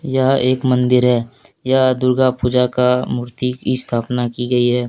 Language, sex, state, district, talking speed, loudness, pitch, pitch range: Hindi, male, Jharkhand, Deoghar, 170 wpm, -16 LUFS, 125 Hz, 125-130 Hz